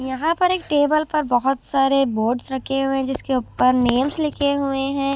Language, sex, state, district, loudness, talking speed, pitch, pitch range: Hindi, female, Chhattisgarh, Raipur, -20 LUFS, 185 wpm, 270 Hz, 260-290 Hz